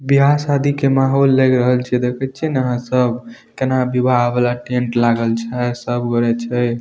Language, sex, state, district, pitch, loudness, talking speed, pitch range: Maithili, male, Bihar, Madhepura, 125 Hz, -17 LUFS, 175 wpm, 120-135 Hz